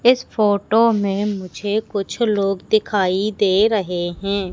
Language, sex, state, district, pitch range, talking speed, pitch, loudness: Hindi, female, Madhya Pradesh, Katni, 195-215 Hz, 130 wpm, 205 Hz, -19 LUFS